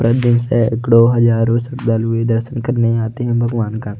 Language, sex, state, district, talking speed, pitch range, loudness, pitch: Hindi, male, Odisha, Nuapada, 180 wpm, 115-120 Hz, -15 LUFS, 115 Hz